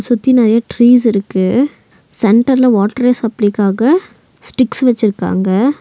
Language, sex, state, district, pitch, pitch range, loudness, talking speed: Tamil, female, Tamil Nadu, Nilgiris, 235 Hz, 205-250 Hz, -12 LUFS, 95 wpm